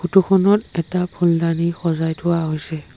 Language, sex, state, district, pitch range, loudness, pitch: Assamese, male, Assam, Sonitpur, 160-180 Hz, -19 LUFS, 170 Hz